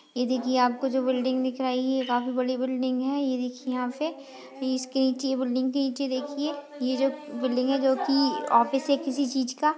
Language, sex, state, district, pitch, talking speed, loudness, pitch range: Hindi, female, Goa, North and South Goa, 260 Hz, 215 wpm, -27 LUFS, 255-275 Hz